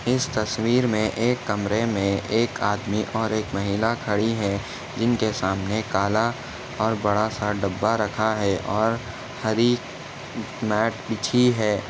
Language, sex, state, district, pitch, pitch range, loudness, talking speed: Hindi, male, Maharashtra, Nagpur, 110 Hz, 105-115 Hz, -24 LUFS, 135 wpm